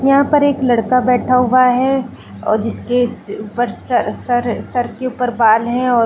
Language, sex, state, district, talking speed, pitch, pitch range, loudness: Hindi, female, Chhattisgarh, Balrampur, 190 wpm, 245 Hz, 235-255 Hz, -15 LUFS